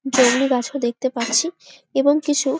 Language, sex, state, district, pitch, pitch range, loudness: Bengali, female, West Bengal, Jalpaiguri, 265 Hz, 245-285 Hz, -19 LUFS